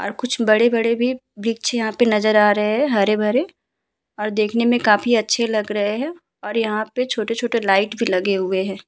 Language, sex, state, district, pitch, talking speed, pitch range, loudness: Hindi, female, Uttar Pradesh, Muzaffarnagar, 220 Hz, 205 wpm, 210-240 Hz, -19 LUFS